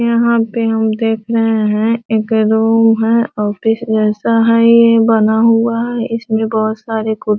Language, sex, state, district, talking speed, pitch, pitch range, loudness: Hindi, female, Bihar, Sitamarhi, 160 wpm, 225 Hz, 220-230 Hz, -13 LUFS